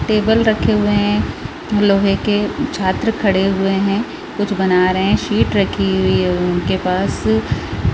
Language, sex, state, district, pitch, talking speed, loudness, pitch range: Hindi, female, Chhattisgarh, Raigarh, 195 Hz, 150 wpm, -16 LUFS, 180-205 Hz